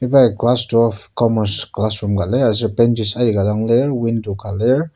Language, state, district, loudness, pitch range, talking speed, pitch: Ao, Nagaland, Kohima, -16 LUFS, 105-120 Hz, 205 wpm, 115 Hz